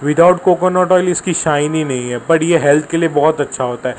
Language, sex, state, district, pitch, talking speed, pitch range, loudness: Hindi, male, Maharashtra, Mumbai Suburban, 160 Hz, 240 wpm, 145-175 Hz, -14 LUFS